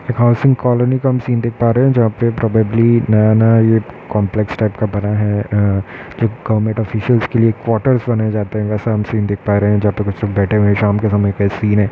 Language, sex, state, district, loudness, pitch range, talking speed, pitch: Hindi, male, Uttar Pradesh, Hamirpur, -15 LUFS, 105-120 Hz, 255 wpm, 110 Hz